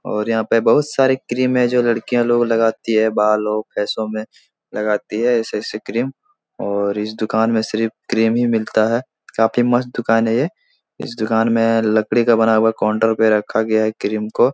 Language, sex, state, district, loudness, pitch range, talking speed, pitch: Hindi, male, Bihar, Araria, -18 LUFS, 110-120 Hz, 195 wpm, 115 Hz